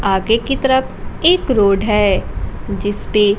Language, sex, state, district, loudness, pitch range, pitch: Hindi, female, Bihar, Kaimur, -15 LUFS, 200-260 Hz, 210 Hz